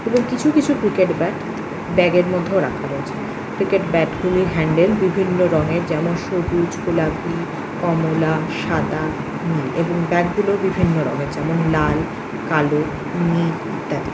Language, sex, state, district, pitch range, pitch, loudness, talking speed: Bengali, female, West Bengal, Purulia, 160-185 Hz, 175 Hz, -19 LUFS, 130 wpm